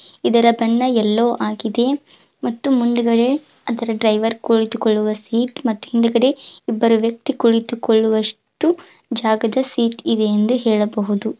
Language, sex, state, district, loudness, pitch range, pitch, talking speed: Kannada, female, Karnataka, Belgaum, -18 LUFS, 220-240 Hz, 230 Hz, 105 wpm